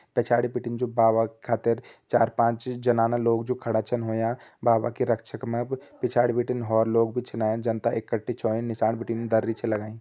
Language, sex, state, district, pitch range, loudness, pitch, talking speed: Hindi, male, Uttarakhand, Uttarkashi, 115-120 Hz, -26 LUFS, 115 Hz, 185 wpm